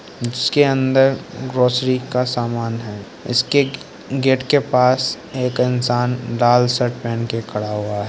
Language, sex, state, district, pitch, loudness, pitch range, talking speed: Hindi, male, Uttar Pradesh, Ghazipur, 125 Hz, -18 LUFS, 120-130 Hz, 140 wpm